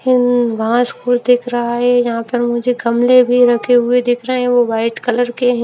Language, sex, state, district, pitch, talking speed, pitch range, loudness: Hindi, female, Haryana, Rohtak, 245 Hz, 200 wpm, 240-245 Hz, -14 LUFS